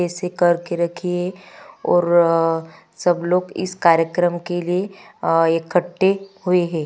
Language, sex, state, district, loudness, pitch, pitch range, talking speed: Hindi, female, Chhattisgarh, Kabirdham, -19 LUFS, 175 Hz, 170-180 Hz, 120 wpm